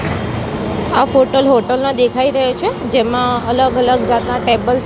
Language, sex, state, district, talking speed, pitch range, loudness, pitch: Gujarati, female, Gujarat, Gandhinagar, 160 wpm, 245-265 Hz, -14 LUFS, 250 Hz